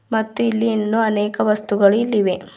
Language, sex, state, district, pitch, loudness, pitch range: Kannada, female, Karnataka, Bidar, 215 Hz, -18 LUFS, 205-225 Hz